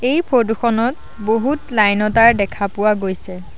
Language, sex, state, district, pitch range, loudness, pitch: Assamese, female, Assam, Sonitpur, 205-240 Hz, -16 LUFS, 225 Hz